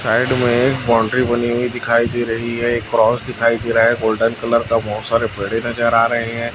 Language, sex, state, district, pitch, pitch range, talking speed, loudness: Hindi, male, Chhattisgarh, Raipur, 115 Hz, 115-120 Hz, 240 wpm, -17 LUFS